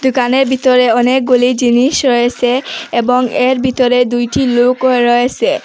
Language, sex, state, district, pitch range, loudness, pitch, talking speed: Bengali, female, Assam, Hailakandi, 245-260 Hz, -12 LUFS, 250 Hz, 115 wpm